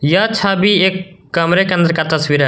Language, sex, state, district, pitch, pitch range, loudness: Hindi, male, Jharkhand, Garhwa, 180 Hz, 160-190 Hz, -14 LUFS